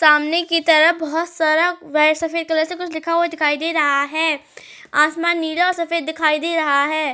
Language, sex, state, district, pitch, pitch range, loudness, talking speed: Hindi, female, Uttar Pradesh, Etah, 320 Hz, 305-335 Hz, -18 LUFS, 200 wpm